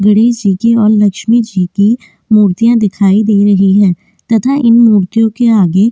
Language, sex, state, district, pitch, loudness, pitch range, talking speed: Hindi, female, Goa, North and South Goa, 210 Hz, -10 LUFS, 200-230 Hz, 180 wpm